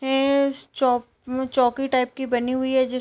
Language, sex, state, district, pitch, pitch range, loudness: Hindi, female, Uttar Pradesh, Deoria, 260 Hz, 250-270 Hz, -23 LUFS